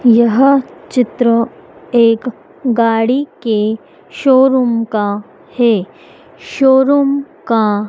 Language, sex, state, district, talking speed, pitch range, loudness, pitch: Hindi, female, Madhya Pradesh, Dhar, 75 wpm, 225-265 Hz, -13 LUFS, 235 Hz